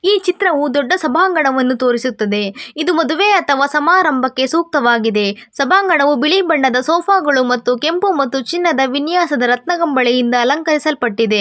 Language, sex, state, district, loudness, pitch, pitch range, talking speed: Kannada, female, Karnataka, Bangalore, -14 LUFS, 290 Hz, 250-340 Hz, 115 wpm